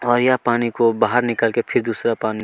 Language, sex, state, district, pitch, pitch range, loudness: Hindi, male, Chhattisgarh, Kabirdham, 120 Hz, 115-120 Hz, -19 LUFS